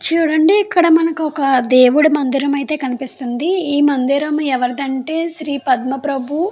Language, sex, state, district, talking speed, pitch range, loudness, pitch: Telugu, female, Andhra Pradesh, Anantapur, 155 wpm, 265-320 Hz, -15 LUFS, 285 Hz